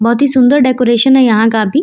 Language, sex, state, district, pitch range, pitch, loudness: Hindi, female, Uttar Pradesh, Lucknow, 230-265 Hz, 250 Hz, -10 LUFS